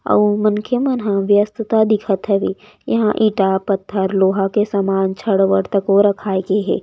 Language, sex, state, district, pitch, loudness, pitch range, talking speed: Chhattisgarhi, female, Chhattisgarh, Raigarh, 200 Hz, -17 LUFS, 195-210 Hz, 165 wpm